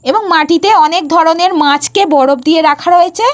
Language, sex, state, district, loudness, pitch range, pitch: Bengali, female, Jharkhand, Jamtara, -9 LUFS, 300-365 Hz, 330 Hz